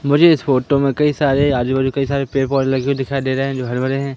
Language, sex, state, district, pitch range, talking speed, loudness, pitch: Hindi, male, Madhya Pradesh, Katni, 130-140 Hz, 315 wpm, -17 LUFS, 135 Hz